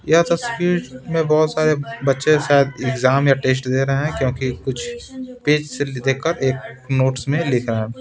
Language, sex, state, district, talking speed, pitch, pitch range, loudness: Hindi, male, Bihar, Patna, 180 wpm, 135 Hz, 130-155 Hz, -19 LUFS